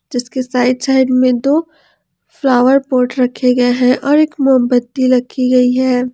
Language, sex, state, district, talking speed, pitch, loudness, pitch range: Hindi, female, Jharkhand, Ranchi, 155 wpm, 255 Hz, -13 LUFS, 250-270 Hz